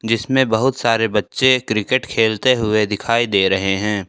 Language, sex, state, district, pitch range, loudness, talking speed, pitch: Hindi, male, Jharkhand, Ranchi, 105-125 Hz, -17 LUFS, 160 wpm, 110 Hz